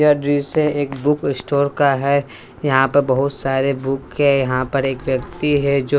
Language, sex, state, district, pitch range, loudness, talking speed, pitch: Hindi, male, Bihar, West Champaran, 135-145 Hz, -18 LUFS, 190 wpm, 140 Hz